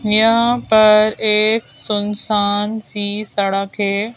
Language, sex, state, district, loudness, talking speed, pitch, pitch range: Hindi, female, Madhya Pradesh, Bhopal, -15 LUFS, 100 wpm, 210 Hz, 205-220 Hz